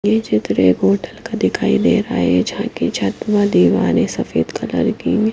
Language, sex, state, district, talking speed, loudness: Hindi, female, Himachal Pradesh, Shimla, 190 wpm, -17 LUFS